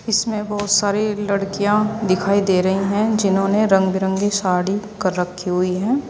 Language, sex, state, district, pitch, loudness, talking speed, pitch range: Hindi, female, Uttar Pradesh, Saharanpur, 200 Hz, -19 LUFS, 155 wpm, 190-210 Hz